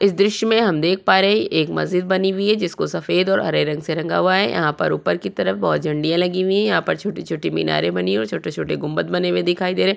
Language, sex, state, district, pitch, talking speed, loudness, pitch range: Hindi, female, Uttarakhand, Tehri Garhwal, 180 Hz, 285 wpm, -19 LUFS, 160-195 Hz